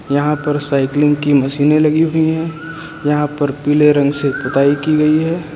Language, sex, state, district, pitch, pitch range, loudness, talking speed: Hindi, male, Uttar Pradesh, Lucknow, 150 Hz, 145-155 Hz, -15 LUFS, 185 wpm